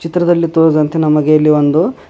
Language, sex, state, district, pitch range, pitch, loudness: Kannada, male, Karnataka, Bidar, 150-165 Hz, 155 Hz, -12 LUFS